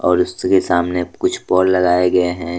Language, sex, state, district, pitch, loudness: Hindi, male, Jharkhand, Deoghar, 90 Hz, -16 LUFS